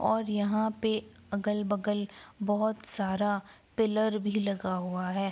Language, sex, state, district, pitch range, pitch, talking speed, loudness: Hindi, female, Bihar, Araria, 200-215 Hz, 205 Hz, 135 wpm, -31 LUFS